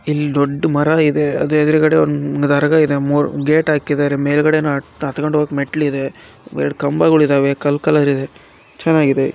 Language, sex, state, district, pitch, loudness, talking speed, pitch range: Kannada, male, Karnataka, Raichur, 145 Hz, -15 LUFS, 150 wpm, 140-150 Hz